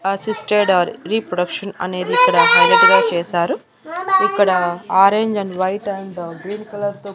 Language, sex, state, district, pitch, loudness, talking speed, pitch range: Telugu, female, Andhra Pradesh, Annamaya, 200 Hz, -16 LUFS, 125 wpm, 185-220 Hz